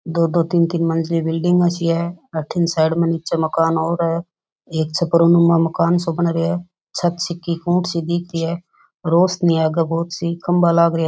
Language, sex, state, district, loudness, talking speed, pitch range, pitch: Rajasthani, female, Rajasthan, Nagaur, -18 LUFS, 210 wpm, 165-170 Hz, 170 Hz